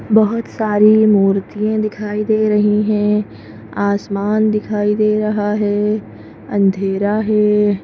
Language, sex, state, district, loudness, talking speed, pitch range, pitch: Hindi, female, Madhya Pradesh, Bhopal, -16 LUFS, 105 wpm, 200-215 Hz, 210 Hz